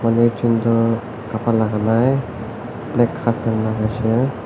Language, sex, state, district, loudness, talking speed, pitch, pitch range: Nagamese, male, Nagaland, Kohima, -19 LUFS, 145 wpm, 115 Hz, 110-120 Hz